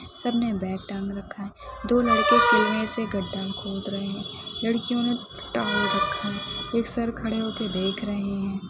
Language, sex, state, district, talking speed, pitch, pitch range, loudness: Hindi, female, Chhattisgarh, Sukma, 170 wpm, 205 Hz, 195-235 Hz, -25 LUFS